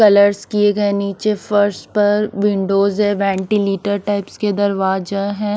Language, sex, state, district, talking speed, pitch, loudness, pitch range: Hindi, female, Odisha, Nuapada, 140 wpm, 205 Hz, -17 LUFS, 200-205 Hz